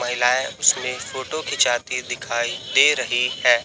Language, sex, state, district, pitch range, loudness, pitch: Hindi, male, Chhattisgarh, Raipur, 120-130 Hz, -20 LUFS, 125 Hz